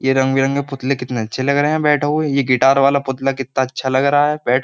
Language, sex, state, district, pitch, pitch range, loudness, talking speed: Hindi, male, Uttar Pradesh, Jyotiba Phule Nagar, 135 Hz, 130-140 Hz, -17 LUFS, 285 wpm